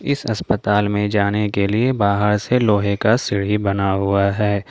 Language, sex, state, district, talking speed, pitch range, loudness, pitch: Hindi, male, Jharkhand, Ranchi, 180 wpm, 100-105 Hz, -18 LUFS, 105 Hz